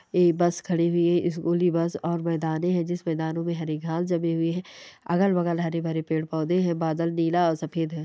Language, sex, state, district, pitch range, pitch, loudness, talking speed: Hindi, female, Chhattisgarh, Sukma, 165-175 Hz, 170 Hz, -25 LUFS, 215 wpm